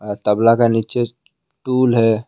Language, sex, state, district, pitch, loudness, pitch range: Hindi, male, Assam, Kamrup Metropolitan, 115 Hz, -16 LUFS, 110-130 Hz